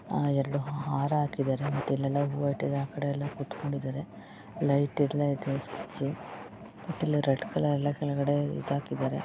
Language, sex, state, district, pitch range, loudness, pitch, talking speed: Kannada, female, Karnataka, Chamarajanagar, 140-145 Hz, -30 LUFS, 140 Hz, 145 wpm